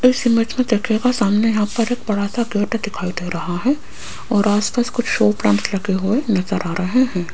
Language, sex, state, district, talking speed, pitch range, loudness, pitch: Hindi, female, Rajasthan, Jaipur, 210 wpm, 190-240 Hz, -19 LUFS, 210 Hz